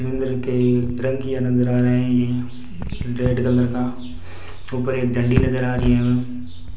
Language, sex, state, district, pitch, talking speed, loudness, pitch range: Hindi, male, Rajasthan, Bikaner, 125 Hz, 135 wpm, -20 LUFS, 120-125 Hz